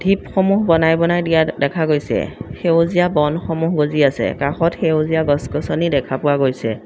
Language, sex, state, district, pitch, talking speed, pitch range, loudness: Assamese, female, Assam, Sonitpur, 160 Hz, 140 wpm, 145-170 Hz, -17 LUFS